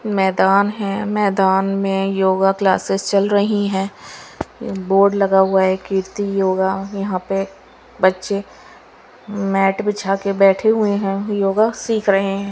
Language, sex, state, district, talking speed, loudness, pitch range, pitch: Hindi, female, Haryana, Charkhi Dadri, 135 wpm, -17 LUFS, 195-205 Hz, 195 Hz